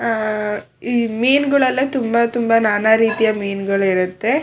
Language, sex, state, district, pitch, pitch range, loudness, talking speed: Kannada, female, Karnataka, Shimoga, 225 Hz, 210-240 Hz, -17 LUFS, 120 wpm